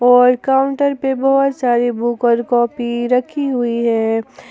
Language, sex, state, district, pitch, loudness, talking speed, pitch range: Hindi, female, Jharkhand, Ranchi, 245 Hz, -16 LUFS, 160 wpm, 240-270 Hz